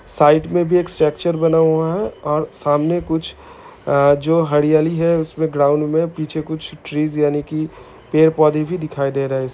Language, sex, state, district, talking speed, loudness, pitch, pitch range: Hindi, male, Bihar, Gopalganj, 200 wpm, -17 LUFS, 155 Hz, 150-165 Hz